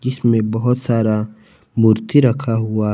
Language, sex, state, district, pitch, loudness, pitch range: Hindi, male, Jharkhand, Palamu, 110 Hz, -17 LUFS, 110-120 Hz